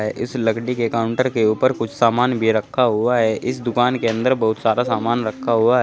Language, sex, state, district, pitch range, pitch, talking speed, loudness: Hindi, male, Uttar Pradesh, Saharanpur, 110-125 Hz, 120 Hz, 225 wpm, -19 LUFS